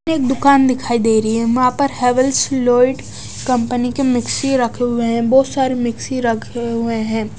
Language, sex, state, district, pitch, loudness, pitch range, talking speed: Hindi, female, Odisha, Nuapada, 245 Hz, -16 LUFS, 235-265 Hz, 180 wpm